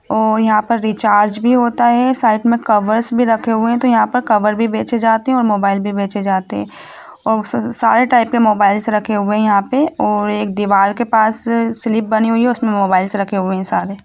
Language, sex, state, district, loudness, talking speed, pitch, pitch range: Hindi, female, Jharkhand, Jamtara, -14 LUFS, 220 wpm, 220 Hz, 205-235 Hz